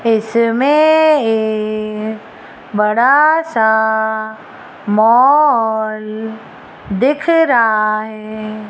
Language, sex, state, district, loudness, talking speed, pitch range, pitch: Hindi, female, Rajasthan, Jaipur, -13 LUFS, 55 wpm, 215-255 Hz, 220 Hz